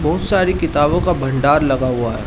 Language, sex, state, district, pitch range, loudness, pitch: Hindi, male, Uttar Pradesh, Shamli, 135-170 Hz, -16 LUFS, 145 Hz